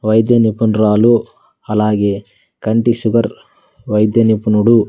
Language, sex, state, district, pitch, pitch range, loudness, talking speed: Telugu, male, Andhra Pradesh, Sri Satya Sai, 110 Hz, 105-115 Hz, -14 LUFS, 85 wpm